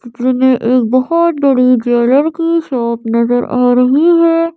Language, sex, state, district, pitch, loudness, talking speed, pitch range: Hindi, female, Madhya Pradesh, Bhopal, 255 Hz, -12 LUFS, 145 wpm, 245-330 Hz